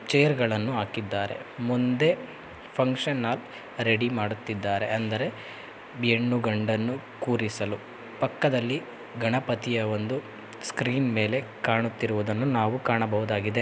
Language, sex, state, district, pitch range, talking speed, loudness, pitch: Kannada, male, Karnataka, Shimoga, 110-125 Hz, 90 wpm, -27 LUFS, 115 Hz